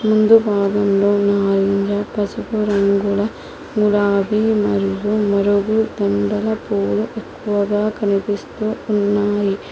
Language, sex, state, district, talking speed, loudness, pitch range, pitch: Telugu, female, Telangana, Hyderabad, 85 wpm, -18 LUFS, 200-210 Hz, 205 Hz